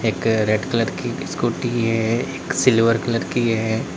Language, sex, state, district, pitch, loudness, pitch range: Hindi, male, Uttar Pradesh, Lalitpur, 115 Hz, -20 LUFS, 110-120 Hz